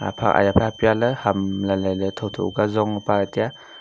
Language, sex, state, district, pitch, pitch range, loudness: Wancho, male, Arunachal Pradesh, Longding, 100 Hz, 95-110 Hz, -21 LUFS